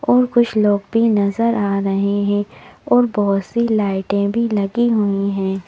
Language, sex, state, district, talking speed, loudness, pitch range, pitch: Hindi, female, Madhya Pradesh, Bhopal, 170 wpm, -17 LUFS, 200-230 Hz, 205 Hz